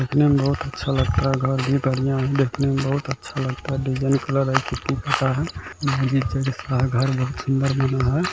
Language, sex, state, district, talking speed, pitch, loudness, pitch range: Hindi, male, Bihar, Kishanganj, 210 wpm, 135 Hz, -22 LUFS, 130-140 Hz